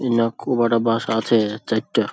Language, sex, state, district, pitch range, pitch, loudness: Bengali, male, West Bengal, Dakshin Dinajpur, 110-120 Hz, 115 Hz, -20 LUFS